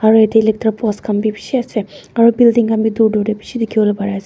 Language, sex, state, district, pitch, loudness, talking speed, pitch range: Nagamese, female, Nagaland, Dimapur, 220 Hz, -15 LUFS, 265 wpm, 210-230 Hz